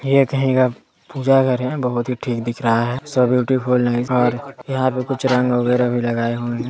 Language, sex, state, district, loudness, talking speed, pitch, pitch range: Hindi, male, Chhattisgarh, Sarguja, -19 LUFS, 215 wpm, 125 Hz, 120-130 Hz